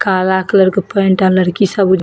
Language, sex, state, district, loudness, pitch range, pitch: Maithili, female, Bihar, Samastipur, -13 LUFS, 185-195 Hz, 190 Hz